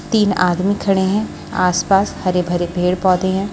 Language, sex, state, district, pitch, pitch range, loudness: Hindi, female, Haryana, Charkhi Dadri, 185 Hz, 180-195 Hz, -17 LUFS